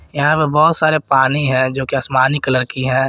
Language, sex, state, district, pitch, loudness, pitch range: Hindi, male, Jharkhand, Garhwa, 135 Hz, -15 LUFS, 130-150 Hz